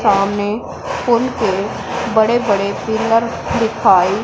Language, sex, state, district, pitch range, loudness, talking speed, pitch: Hindi, female, Punjab, Pathankot, 200-235 Hz, -16 LUFS, 100 wpm, 220 Hz